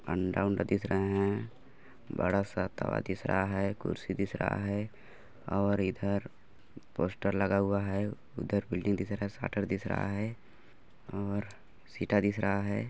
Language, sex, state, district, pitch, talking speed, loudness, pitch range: Hindi, male, Chhattisgarh, Balrampur, 100 Hz, 165 wpm, -33 LUFS, 95-100 Hz